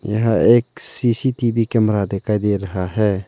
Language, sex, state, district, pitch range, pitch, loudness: Hindi, male, Arunachal Pradesh, Lower Dibang Valley, 100-120 Hz, 110 Hz, -18 LUFS